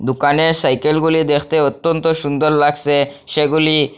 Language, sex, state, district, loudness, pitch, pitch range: Bengali, male, Assam, Hailakandi, -15 LUFS, 150 Hz, 145-160 Hz